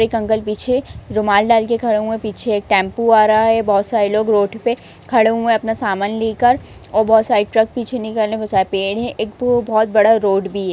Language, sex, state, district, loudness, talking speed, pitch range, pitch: Hindi, female, Chhattisgarh, Raigarh, -16 LUFS, 235 wpm, 210-230 Hz, 220 Hz